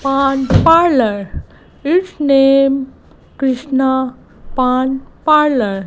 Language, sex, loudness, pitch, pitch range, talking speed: English, female, -14 LUFS, 270 Hz, 260-285 Hz, 70 wpm